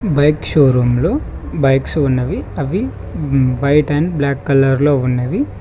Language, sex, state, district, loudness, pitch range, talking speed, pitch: Telugu, male, Telangana, Mahabubabad, -15 LUFS, 130-145 Hz, 130 wpm, 140 Hz